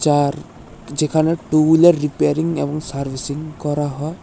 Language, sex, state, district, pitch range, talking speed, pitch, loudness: Bengali, male, Tripura, West Tripura, 145-155 Hz, 125 wpm, 150 Hz, -18 LUFS